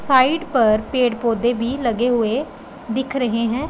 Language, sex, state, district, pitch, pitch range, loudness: Hindi, female, Punjab, Pathankot, 245 Hz, 230-265 Hz, -19 LUFS